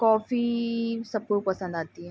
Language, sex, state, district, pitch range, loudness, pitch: Hindi, female, Bihar, Begusarai, 185-230 Hz, -28 LUFS, 220 Hz